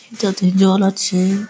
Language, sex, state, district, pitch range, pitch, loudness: Bengali, male, West Bengal, Malda, 190-200 Hz, 195 Hz, -16 LUFS